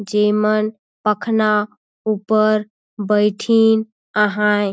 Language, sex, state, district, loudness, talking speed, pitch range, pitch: Surgujia, female, Chhattisgarh, Sarguja, -18 LUFS, 65 wpm, 210-215 Hz, 210 Hz